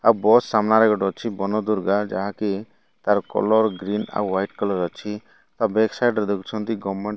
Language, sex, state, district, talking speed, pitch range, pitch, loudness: Odia, male, Odisha, Malkangiri, 185 wpm, 100-110 Hz, 105 Hz, -22 LUFS